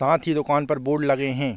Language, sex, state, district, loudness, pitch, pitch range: Hindi, male, Chhattisgarh, Bilaspur, -22 LUFS, 145 Hz, 135-150 Hz